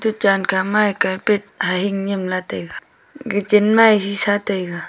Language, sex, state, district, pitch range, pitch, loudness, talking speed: Wancho, female, Arunachal Pradesh, Longding, 190-210 Hz, 200 Hz, -18 LUFS, 145 wpm